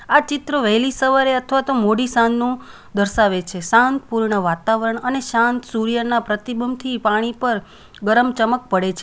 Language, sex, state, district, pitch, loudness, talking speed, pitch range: Gujarati, female, Gujarat, Valsad, 235 Hz, -18 LUFS, 160 wpm, 215-255 Hz